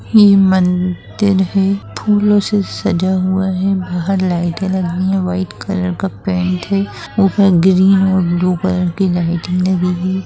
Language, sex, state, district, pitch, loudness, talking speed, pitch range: Hindi, female, Bihar, Gopalganj, 190 Hz, -15 LUFS, 150 wpm, 180-195 Hz